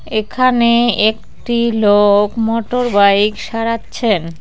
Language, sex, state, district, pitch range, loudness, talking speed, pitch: Bengali, female, West Bengal, Cooch Behar, 205-235 Hz, -14 LUFS, 70 wpm, 225 Hz